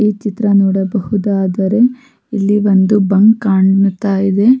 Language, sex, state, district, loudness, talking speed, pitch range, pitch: Kannada, female, Karnataka, Raichur, -13 LUFS, 105 wpm, 195-210 Hz, 205 Hz